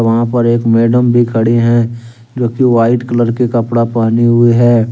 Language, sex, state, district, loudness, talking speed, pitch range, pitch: Hindi, male, Jharkhand, Deoghar, -11 LUFS, 195 wpm, 115-120 Hz, 120 Hz